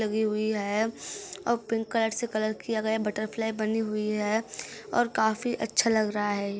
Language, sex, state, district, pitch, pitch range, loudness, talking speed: Hindi, female, Uttar Pradesh, Gorakhpur, 220 Hz, 215-230 Hz, -28 LUFS, 190 wpm